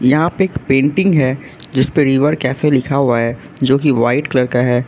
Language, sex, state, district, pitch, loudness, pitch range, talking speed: Hindi, male, Arunachal Pradesh, Lower Dibang Valley, 135 Hz, -15 LUFS, 130-150 Hz, 210 wpm